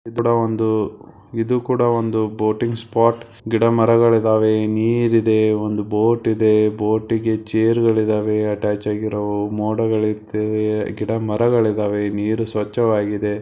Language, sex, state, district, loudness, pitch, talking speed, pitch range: Kannada, male, Karnataka, Belgaum, -19 LUFS, 110 Hz, 105 wpm, 105-115 Hz